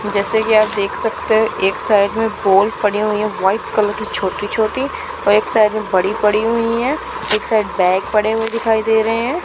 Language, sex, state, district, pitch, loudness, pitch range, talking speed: Hindi, female, Chandigarh, Chandigarh, 215 Hz, -16 LUFS, 205-225 Hz, 220 wpm